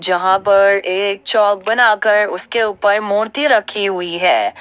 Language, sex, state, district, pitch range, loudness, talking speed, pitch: Hindi, female, Jharkhand, Ranchi, 195-215 Hz, -14 LUFS, 145 wpm, 205 Hz